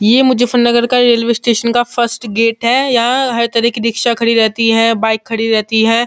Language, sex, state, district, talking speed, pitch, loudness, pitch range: Hindi, male, Uttar Pradesh, Muzaffarnagar, 205 wpm, 235 Hz, -12 LUFS, 225-240 Hz